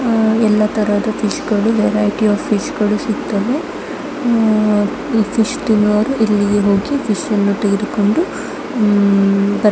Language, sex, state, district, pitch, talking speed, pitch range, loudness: Kannada, female, Karnataka, Dakshina Kannada, 210 Hz, 125 wpm, 205-225 Hz, -15 LUFS